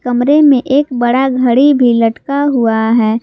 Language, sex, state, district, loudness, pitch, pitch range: Hindi, female, Jharkhand, Garhwa, -11 LUFS, 250 Hz, 235-280 Hz